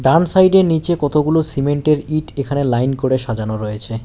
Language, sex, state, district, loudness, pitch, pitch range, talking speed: Bengali, male, West Bengal, Alipurduar, -16 LUFS, 145 Hz, 125-160 Hz, 165 wpm